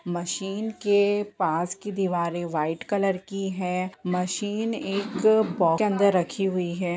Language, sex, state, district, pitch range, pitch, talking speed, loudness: Hindi, female, Bihar, Bhagalpur, 175-205 Hz, 190 Hz, 145 wpm, -25 LUFS